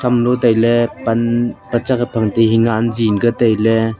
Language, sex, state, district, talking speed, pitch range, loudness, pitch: Wancho, male, Arunachal Pradesh, Longding, 135 wpm, 115-120 Hz, -15 LUFS, 115 Hz